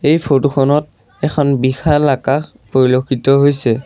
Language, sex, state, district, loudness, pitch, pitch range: Assamese, male, Assam, Sonitpur, -14 LUFS, 140 Hz, 130-145 Hz